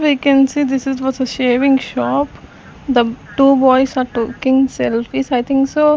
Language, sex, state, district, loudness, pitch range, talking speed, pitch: English, female, Chandigarh, Chandigarh, -15 LUFS, 255-275 Hz, 180 wpm, 265 Hz